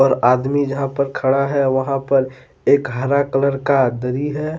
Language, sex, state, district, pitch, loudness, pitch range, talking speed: Hindi, male, Jharkhand, Deoghar, 135 Hz, -18 LUFS, 130-140 Hz, 170 wpm